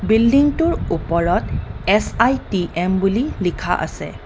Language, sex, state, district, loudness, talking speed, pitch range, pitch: Assamese, female, Assam, Kamrup Metropolitan, -19 LUFS, 85 wpm, 170-235 Hz, 195 Hz